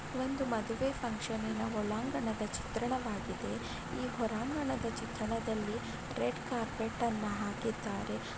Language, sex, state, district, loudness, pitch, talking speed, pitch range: Kannada, female, Karnataka, Chamarajanagar, -37 LUFS, 225 Hz, 85 wpm, 215-240 Hz